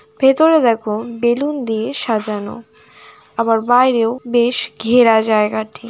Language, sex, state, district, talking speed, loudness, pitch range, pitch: Bengali, female, West Bengal, Paschim Medinipur, 100 wpm, -15 LUFS, 220-250 Hz, 235 Hz